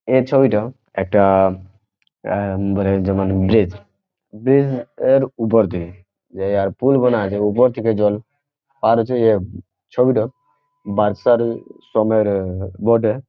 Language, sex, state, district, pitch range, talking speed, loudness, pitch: Bengali, male, West Bengal, Jhargram, 100-125 Hz, 115 wpm, -18 LUFS, 105 Hz